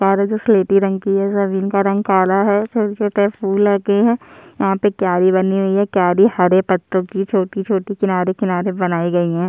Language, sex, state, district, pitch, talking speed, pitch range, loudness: Hindi, male, Chhattisgarh, Sukma, 195 Hz, 215 wpm, 185-205 Hz, -16 LUFS